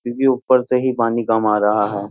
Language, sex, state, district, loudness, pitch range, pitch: Hindi, male, Uttar Pradesh, Jyotiba Phule Nagar, -17 LUFS, 105-125 Hz, 115 Hz